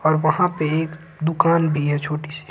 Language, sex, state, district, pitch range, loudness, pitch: Hindi, male, Jharkhand, Ranchi, 150-165 Hz, -21 LUFS, 155 Hz